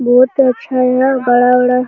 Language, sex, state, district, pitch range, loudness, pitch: Hindi, male, Bihar, Jamui, 250-255 Hz, -12 LUFS, 250 Hz